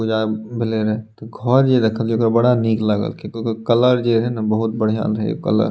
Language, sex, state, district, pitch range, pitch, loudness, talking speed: Maithili, male, Bihar, Madhepura, 110-115 Hz, 115 Hz, -18 LUFS, 230 wpm